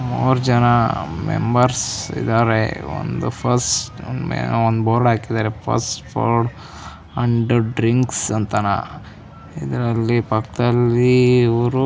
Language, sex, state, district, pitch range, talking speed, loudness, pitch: Kannada, female, Karnataka, Raichur, 110-125 Hz, 90 wpm, -18 LUFS, 115 Hz